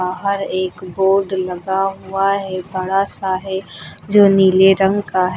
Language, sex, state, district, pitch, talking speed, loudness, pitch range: Hindi, female, Uttar Pradesh, Lucknow, 190 Hz, 155 wpm, -17 LUFS, 185-195 Hz